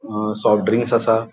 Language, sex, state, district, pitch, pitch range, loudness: Konkani, male, Goa, North and South Goa, 110 Hz, 105-115 Hz, -18 LUFS